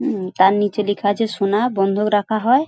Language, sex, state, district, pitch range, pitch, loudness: Bengali, female, West Bengal, Paschim Medinipur, 200-220 Hz, 205 Hz, -18 LUFS